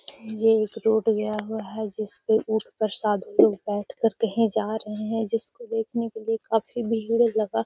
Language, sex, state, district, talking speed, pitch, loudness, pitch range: Magahi, female, Bihar, Gaya, 205 wpm, 220 Hz, -25 LUFS, 215-225 Hz